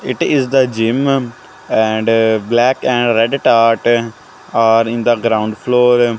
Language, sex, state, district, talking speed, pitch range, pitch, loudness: English, male, Punjab, Kapurthala, 135 wpm, 115-125 Hz, 115 Hz, -14 LUFS